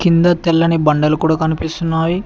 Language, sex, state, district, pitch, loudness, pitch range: Telugu, male, Telangana, Mahabubabad, 165 Hz, -15 LUFS, 160-170 Hz